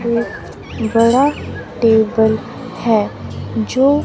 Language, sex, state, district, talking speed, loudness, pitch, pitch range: Hindi, female, Himachal Pradesh, Shimla, 75 wpm, -16 LUFS, 225 Hz, 215-235 Hz